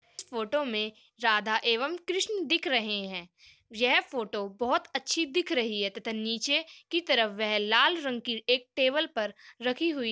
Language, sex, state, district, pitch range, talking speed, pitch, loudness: Hindi, female, Uttar Pradesh, Muzaffarnagar, 220-305 Hz, 170 wpm, 245 Hz, -28 LUFS